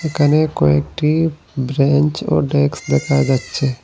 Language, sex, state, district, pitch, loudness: Bengali, male, Assam, Hailakandi, 140 Hz, -16 LUFS